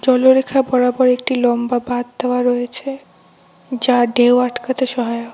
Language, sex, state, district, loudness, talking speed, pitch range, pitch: Bengali, female, West Bengal, Cooch Behar, -16 LUFS, 125 wpm, 240-255 Hz, 245 Hz